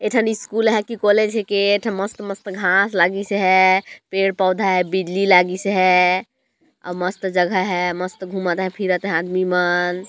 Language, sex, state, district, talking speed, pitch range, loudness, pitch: Chhattisgarhi, male, Chhattisgarh, Jashpur, 170 wpm, 180-200 Hz, -18 LUFS, 190 Hz